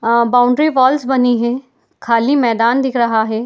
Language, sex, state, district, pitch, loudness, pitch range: Hindi, female, Uttar Pradesh, Etah, 245 Hz, -14 LUFS, 235-260 Hz